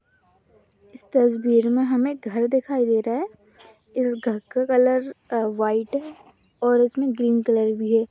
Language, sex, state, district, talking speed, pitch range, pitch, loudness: Hindi, female, Jharkhand, Sahebganj, 155 wpm, 225-255 Hz, 240 Hz, -22 LUFS